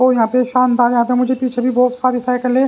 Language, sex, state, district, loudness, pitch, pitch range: Hindi, male, Haryana, Jhajjar, -15 LUFS, 250 Hz, 245-255 Hz